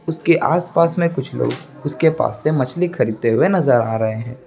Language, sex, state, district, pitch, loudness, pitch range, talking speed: Hindi, male, Bihar, Gaya, 155 Hz, -18 LUFS, 125-170 Hz, 190 wpm